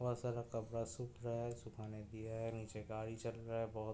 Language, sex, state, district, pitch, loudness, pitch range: Hindi, male, Uttar Pradesh, Budaun, 115 Hz, -46 LUFS, 110-120 Hz